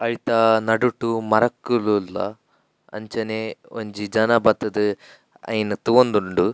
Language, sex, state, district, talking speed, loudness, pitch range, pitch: Tulu, male, Karnataka, Dakshina Kannada, 90 wpm, -21 LUFS, 105-115 Hz, 110 Hz